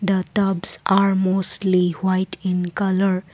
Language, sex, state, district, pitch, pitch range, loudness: English, female, Assam, Kamrup Metropolitan, 190 Hz, 185-195 Hz, -20 LUFS